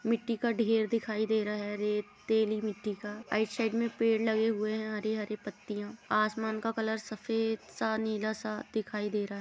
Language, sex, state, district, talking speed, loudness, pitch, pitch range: Hindi, female, Uttar Pradesh, Jalaun, 190 wpm, -32 LUFS, 215 Hz, 210-225 Hz